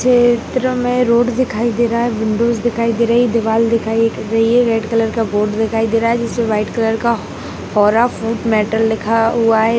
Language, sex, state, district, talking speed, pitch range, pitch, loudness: Hindi, female, Karnataka, Gulbarga, 220 wpm, 225-235 Hz, 230 Hz, -15 LUFS